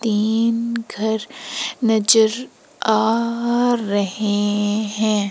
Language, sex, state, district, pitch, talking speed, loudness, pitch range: Hindi, female, Madhya Pradesh, Umaria, 220 Hz, 70 wpm, -19 LUFS, 210-230 Hz